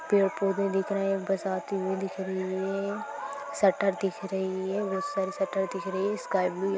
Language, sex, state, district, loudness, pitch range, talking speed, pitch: Hindi, male, Maharashtra, Nagpur, -29 LUFS, 190-200 Hz, 210 wpm, 195 Hz